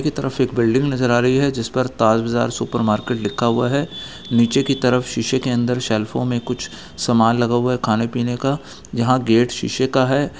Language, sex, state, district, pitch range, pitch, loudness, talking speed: Hindi, male, Bihar, Gaya, 115-130 Hz, 125 Hz, -19 LUFS, 220 wpm